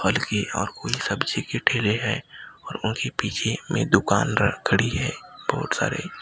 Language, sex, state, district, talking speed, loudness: Hindi, male, Maharashtra, Gondia, 185 wpm, -24 LUFS